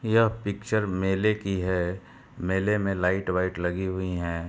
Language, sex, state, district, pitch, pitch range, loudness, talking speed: Hindi, male, Uttar Pradesh, Hamirpur, 95 Hz, 90-105 Hz, -27 LUFS, 160 wpm